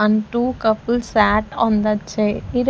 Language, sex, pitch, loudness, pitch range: English, female, 215 Hz, -19 LUFS, 210-235 Hz